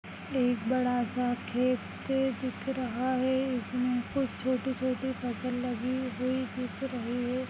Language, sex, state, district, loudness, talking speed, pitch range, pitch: Hindi, male, Maharashtra, Nagpur, -31 LUFS, 130 wpm, 245-260 Hz, 255 Hz